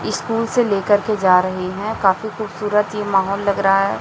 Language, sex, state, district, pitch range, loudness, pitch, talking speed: Hindi, female, Chhattisgarh, Raipur, 195-215 Hz, -18 LUFS, 205 Hz, 210 wpm